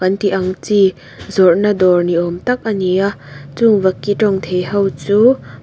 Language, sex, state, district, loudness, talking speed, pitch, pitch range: Mizo, female, Mizoram, Aizawl, -15 LUFS, 170 wpm, 190 Hz, 175-205 Hz